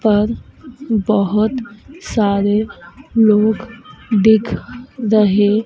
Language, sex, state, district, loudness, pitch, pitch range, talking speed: Hindi, female, Madhya Pradesh, Dhar, -16 LUFS, 220 Hz, 210-230 Hz, 65 wpm